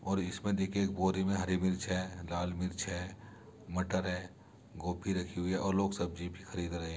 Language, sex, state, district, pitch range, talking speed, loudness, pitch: Hindi, male, Uttar Pradesh, Muzaffarnagar, 90-95 Hz, 215 wpm, -35 LUFS, 95 Hz